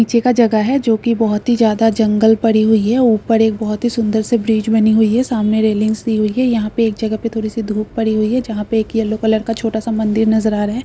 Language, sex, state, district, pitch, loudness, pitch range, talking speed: Marwari, female, Rajasthan, Nagaur, 220 Hz, -15 LUFS, 215-230 Hz, 275 wpm